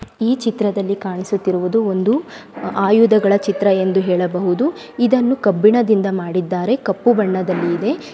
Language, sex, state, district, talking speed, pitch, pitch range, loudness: Kannada, female, Karnataka, Raichur, 105 wpm, 200 Hz, 185-230 Hz, -17 LUFS